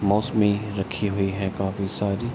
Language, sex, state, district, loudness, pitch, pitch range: Hindi, male, Bihar, Araria, -25 LUFS, 100 Hz, 95-105 Hz